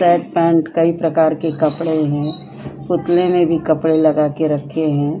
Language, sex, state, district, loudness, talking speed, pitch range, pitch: Hindi, female, Bihar, Vaishali, -16 LUFS, 170 wpm, 155-165 Hz, 160 Hz